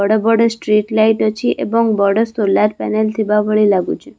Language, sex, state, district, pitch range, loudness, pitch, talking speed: Odia, female, Odisha, Khordha, 210-225 Hz, -15 LUFS, 215 Hz, 185 wpm